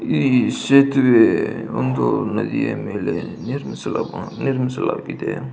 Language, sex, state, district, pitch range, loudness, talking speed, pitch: Kannada, male, Karnataka, Belgaum, 115-135 Hz, -19 LUFS, 65 wpm, 130 Hz